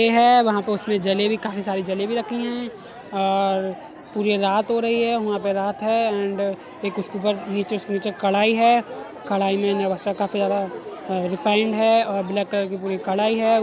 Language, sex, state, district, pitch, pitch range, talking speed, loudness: Hindi, male, Uttar Pradesh, Etah, 205 Hz, 195-220 Hz, 200 wpm, -22 LUFS